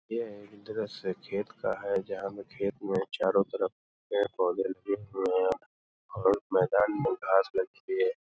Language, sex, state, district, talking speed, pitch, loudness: Hindi, male, Uttar Pradesh, Hamirpur, 155 wpm, 115 Hz, -31 LUFS